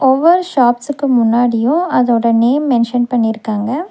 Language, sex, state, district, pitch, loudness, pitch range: Tamil, female, Tamil Nadu, Nilgiris, 245 Hz, -13 LUFS, 235-285 Hz